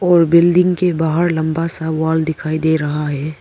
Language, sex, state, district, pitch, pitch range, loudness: Hindi, female, Arunachal Pradesh, Papum Pare, 160 Hz, 160-170 Hz, -16 LUFS